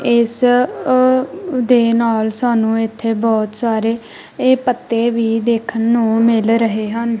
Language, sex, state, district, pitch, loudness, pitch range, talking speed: Punjabi, female, Punjab, Kapurthala, 230 Hz, -15 LUFS, 225-245 Hz, 125 wpm